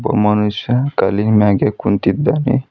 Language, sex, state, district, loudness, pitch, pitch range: Kannada, female, Karnataka, Bidar, -15 LUFS, 110 Hz, 105-135 Hz